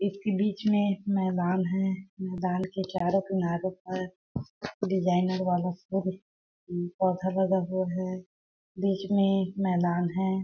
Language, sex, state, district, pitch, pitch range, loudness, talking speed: Hindi, female, Chhattisgarh, Balrampur, 185 Hz, 185-195 Hz, -29 LUFS, 130 wpm